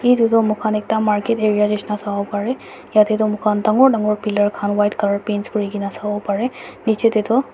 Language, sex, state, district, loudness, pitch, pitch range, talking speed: Nagamese, female, Nagaland, Dimapur, -18 LUFS, 210 Hz, 205-220 Hz, 185 wpm